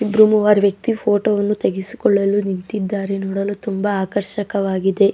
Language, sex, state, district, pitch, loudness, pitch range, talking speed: Kannada, female, Karnataka, Dakshina Kannada, 205 Hz, -18 LUFS, 195-210 Hz, 115 wpm